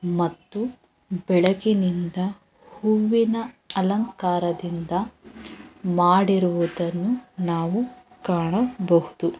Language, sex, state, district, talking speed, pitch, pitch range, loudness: Kannada, female, Karnataka, Bellary, 45 wpm, 185 Hz, 175-215 Hz, -23 LUFS